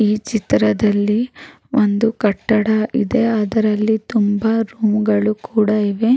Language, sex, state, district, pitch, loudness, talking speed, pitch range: Kannada, female, Karnataka, Raichur, 215 Hz, -17 LUFS, 105 wpm, 210-225 Hz